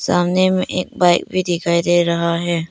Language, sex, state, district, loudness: Hindi, female, Arunachal Pradesh, Papum Pare, -17 LUFS